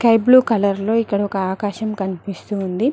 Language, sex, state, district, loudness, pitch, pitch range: Telugu, female, Telangana, Mahabubabad, -18 LUFS, 205 Hz, 195-225 Hz